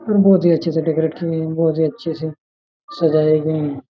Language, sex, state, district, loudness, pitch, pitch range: Hindi, male, Jharkhand, Jamtara, -18 LUFS, 160 Hz, 155-170 Hz